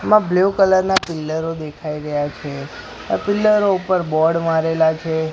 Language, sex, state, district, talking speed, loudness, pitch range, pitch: Gujarati, male, Gujarat, Gandhinagar, 155 wpm, -18 LUFS, 155-190 Hz, 165 Hz